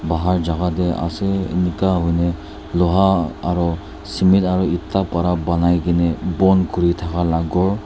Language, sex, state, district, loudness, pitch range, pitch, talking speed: Nagamese, male, Nagaland, Dimapur, -18 LUFS, 85-95 Hz, 90 Hz, 135 wpm